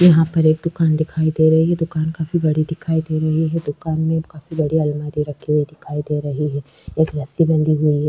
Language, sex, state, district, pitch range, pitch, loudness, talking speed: Hindi, female, Chhattisgarh, Sukma, 150-160 Hz, 155 Hz, -19 LUFS, 230 wpm